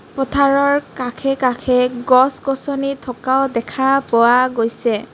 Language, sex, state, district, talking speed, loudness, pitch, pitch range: Assamese, female, Assam, Kamrup Metropolitan, 105 wpm, -17 LUFS, 260 Hz, 245-275 Hz